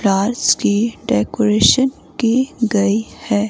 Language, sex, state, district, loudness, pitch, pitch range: Hindi, female, Himachal Pradesh, Shimla, -16 LUFS, 210 Hz, 200-235 Hz